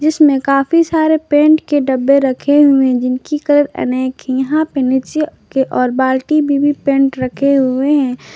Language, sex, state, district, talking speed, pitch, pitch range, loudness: Hindi, female, Jharkhand, Garhwa, 170 wpm, 275 Hz, 260-295 Hz, -13 LUFS